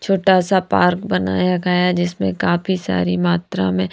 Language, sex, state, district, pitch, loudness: Hindi, female, Haryana, Rohtak, 175 Hz, -18 LUFS